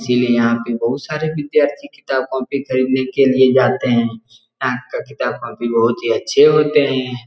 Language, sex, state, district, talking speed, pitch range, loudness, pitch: Hindi, male, Bihar, Jahanabad, 180 wpm, 120-140 Hz, -16 LUFS, 130 Hz